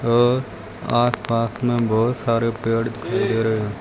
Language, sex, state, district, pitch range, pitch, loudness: Hindi, male, Punjab, Fazilka, 115-120 Hz, 115 Hz, -21 LUFS